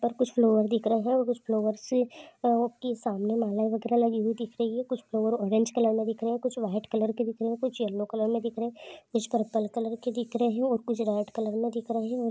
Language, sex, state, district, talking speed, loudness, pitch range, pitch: Hindi, female, West Bengal, North 24 Parganas, 285 wpm, -29 LUFS, 220-240 Hz, 230 Hz